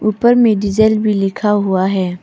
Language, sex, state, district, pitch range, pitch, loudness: Hindi, female, Arunachal Pradesh, Papum Pare, 195-220 Hz, 205 Hz, -14 LUFS